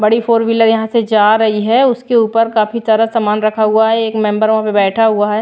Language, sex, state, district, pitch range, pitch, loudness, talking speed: Hindi, female, Bihar, Patna, 215-230 Hz, 220 Hz, -12 LUFS, 255 wpm